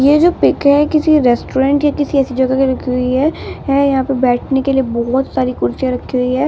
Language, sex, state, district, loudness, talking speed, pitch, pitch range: Hindi, female, Bihar, West Champaran, -14 LUFS, 230 wpm, 265 Hz, 255-285 Hz